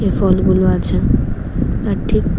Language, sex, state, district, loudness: Bengali, female, Tripura, West Tripura, -16 LUFS